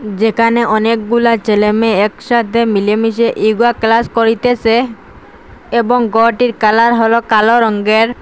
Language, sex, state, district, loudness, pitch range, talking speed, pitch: Bengali, female, Assam, Hailakandi, -12 LUFS, 220-235 Hz, 110 wpm, 230 Hz